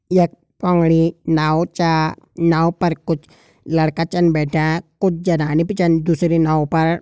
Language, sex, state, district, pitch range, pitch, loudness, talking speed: Garhwali, male, Uttarakhand, Uttarkashi, 160-170 Hz, 165 Hz, -18 LUFS, 145 wpm